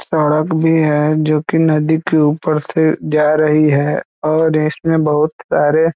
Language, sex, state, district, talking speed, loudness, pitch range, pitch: Hindi, male, Bihar, East Champaran, 160 wpm, -14 LUFS, 150-160 Hz, 155 Hz